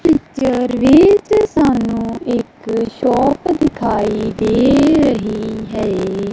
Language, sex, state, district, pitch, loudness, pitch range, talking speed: Punjabi, female, Punjab, Kapurthala, 245 Hz, -15 LUFS, 220-290 Hz, 85 wpm